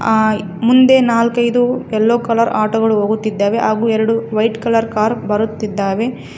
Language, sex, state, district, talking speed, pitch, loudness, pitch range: Kannada, female, Karnataka, Koppal, 130 wpm, 225 Hz, -15 LUFS, 215-230 Hz